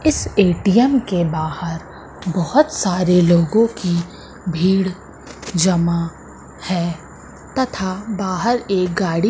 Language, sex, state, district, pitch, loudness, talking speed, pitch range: Hindi, female, Madhya Pradesh, Katni, 185 Hz, -18 LUFS, 95 wpm, 170-215 Hz